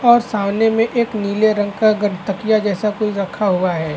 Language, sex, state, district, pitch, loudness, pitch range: Hindi, male, Chhattisgarh, Bastar, 210 Hz, -17 LUFS, 200-220 Hz